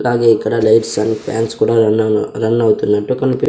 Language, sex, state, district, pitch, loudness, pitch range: Telugu, male, Andhra Pradesh, Sri Satya Sai, 115 Hz, -14 LUFS, 110-115 Hz